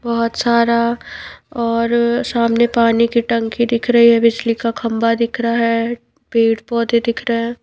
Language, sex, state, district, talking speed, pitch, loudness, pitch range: Hindi, female, Bihar, Patna, 165 wpm, 235 Hz, -16 LUFS, 230-235 Hz